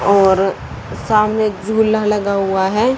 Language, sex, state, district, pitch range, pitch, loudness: Hindi, female, Haryana, Rohtak, 195-220 Hz, 210 Hz, -15 LUFS